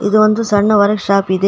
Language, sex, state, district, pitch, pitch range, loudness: Kannada, female, Karnataka, Koppal, 205 Hz, 200-215 Hz, -13 LUFS